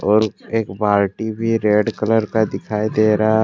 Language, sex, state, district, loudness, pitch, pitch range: Hindi, male, Jharkhand, Deoghar, -18 LUFS, 110 Hz, 105-110 Hz